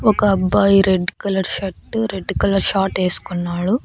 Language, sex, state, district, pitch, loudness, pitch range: Telugu, female, Andhra Pradesh, Annamaya, 195 Hz, -18 LUFS, 185-200 Hz